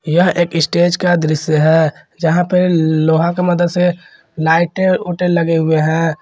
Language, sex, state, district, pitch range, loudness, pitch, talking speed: Hindi, male, Jharkhand, Garhwa, 160-175 Hz, -14 LUFS, 170 Hz, 155 wpm